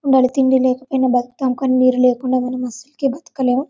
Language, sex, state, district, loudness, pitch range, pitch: Telugu, female, Telangana, Karimnagar, -17 LUFS, 255-265 Hz, 255 Hz